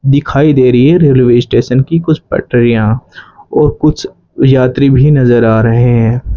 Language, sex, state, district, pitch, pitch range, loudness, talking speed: Hindi, male, Rajasthan, Bikaner, 130 Hz, 120-140 Hz, -9 LUFS, 160 wpm